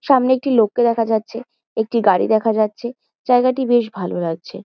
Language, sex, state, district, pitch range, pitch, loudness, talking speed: Bengali, female, West Bengal, Kolkata, 220-250 Hz, 235 Hz, -18 LUFS, 170 wpm